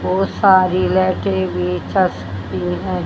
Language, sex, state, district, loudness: Hindi, female, Haryana, Charkhi Dadri, -17 LUFS